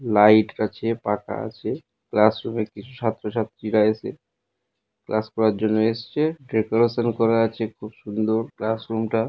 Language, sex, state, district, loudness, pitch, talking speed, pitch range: Bengali, male, West Bengal, North 24 Parganas, -23 LUFS, 110 Hz, 160 wpm, 110-115 Hz